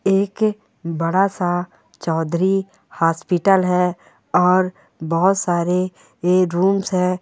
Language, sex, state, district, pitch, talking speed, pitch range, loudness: Hindi, female, Rajasthan, Churu, 180 Hz, 90 wpm, 175-195 Hz, -19 LUFS